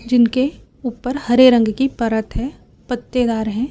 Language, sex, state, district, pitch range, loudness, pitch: Hindi, female, Chhattisgarh, Raipur, 230-255 Hz, -17 LUFS, 245 Hz